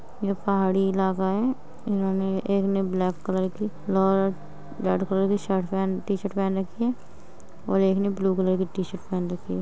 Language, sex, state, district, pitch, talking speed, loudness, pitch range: Hindi, female, Uttar Pradesh, Muzaffarnagar, 190 Hz, 175 wpm, -25 LUFS, 190-195 Hz